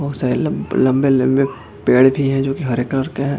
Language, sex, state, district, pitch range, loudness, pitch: Hindi, male, Chhattisgarh, Bilaspur, 130-140 Hz, -17 LUFS, 135 Hz